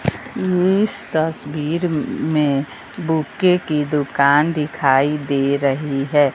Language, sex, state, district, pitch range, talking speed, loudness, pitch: Hindi, female, Bihar, West Champaran, 140-160 Hz, 95 wpm, -19 LUFS, 150 Hz